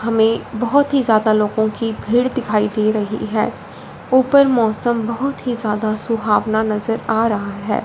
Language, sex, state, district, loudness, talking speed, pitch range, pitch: Hindi, male, Punjab, Fazilka, -17 LUFS, 160 wpm, 215-245 Hz, 225 Hz